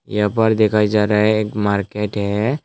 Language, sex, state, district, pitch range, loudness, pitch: Hindi, male, Tripura, West Tripura, 105-110 Hz, -17 LUFS, 105 Hz